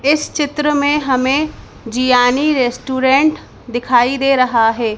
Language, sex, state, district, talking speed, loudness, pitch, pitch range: Hindi, female, Madhya Pradesh, Bhopal, 120 wpm, -15 LUFS, 260 Hz, 245-295 Hz